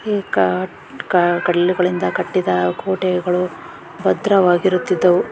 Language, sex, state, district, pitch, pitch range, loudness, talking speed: Kannada, female, Karnataka, Dakshina Kannada, 180 Hz, 175-185 Hz, -17 LUFS, 70 wpm